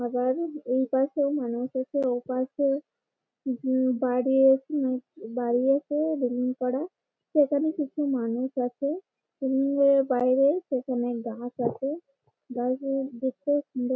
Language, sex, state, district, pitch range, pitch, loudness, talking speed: Bengali, female, West Bengal, Malda, 250-280 Hz, 260 Hz, -27 LUFS, 105 wpm